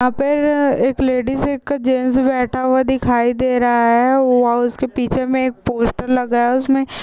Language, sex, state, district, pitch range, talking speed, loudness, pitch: Hindi, female, Maharashtra, Nagpur, 245-265 Hz, 180 wpm, -16 LUFS, 255 Hz